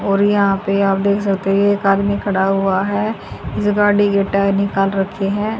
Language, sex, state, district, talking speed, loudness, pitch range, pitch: Hindi, female, Haryana, Jhajjar, 205 wpm, -16 LUFS, 195-205 Hz, 200 Hz